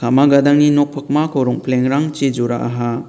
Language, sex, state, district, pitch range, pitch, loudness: Garo, male, Meghalaya, West Garo Hills, 125-145 Hz, 135 Hz, -15 LUFS